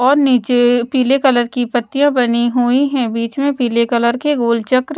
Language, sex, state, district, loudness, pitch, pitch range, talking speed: Hindi, female, Odisha, Sambalpur, -15 LUFS, 250 Hz, 240-270 Hz, 195 wpm